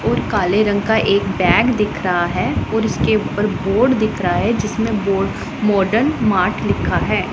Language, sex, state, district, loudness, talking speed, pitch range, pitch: Hindi, female, Punjab, Pathankot, -17 LUFS, 180 wpm, 200-225 Hz, 210 Hz